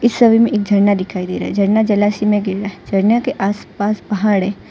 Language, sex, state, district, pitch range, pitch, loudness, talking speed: Hindi, female, Gujarat, Valsad, 200-215 Hz, 205 Hz, -16 LUFS, 230 wpm